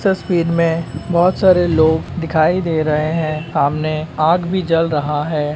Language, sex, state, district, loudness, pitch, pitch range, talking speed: Hindi, male, Bihar, Begusarai, -16 LUFS, 160 Hz, 155-175 Hz, 160 wpm